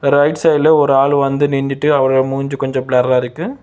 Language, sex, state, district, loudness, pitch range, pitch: Tamil, male, Tamil Nadu, Chennai, -14 LUFS, 135-150 Hz, 140 Hz